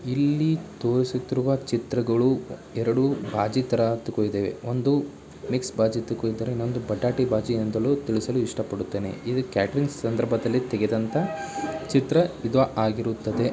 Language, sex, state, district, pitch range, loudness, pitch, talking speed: Kannada, male, Karnataka, Bijapur, 115-135 Hz, -25 LUFS, 120 Hz, 110 wpm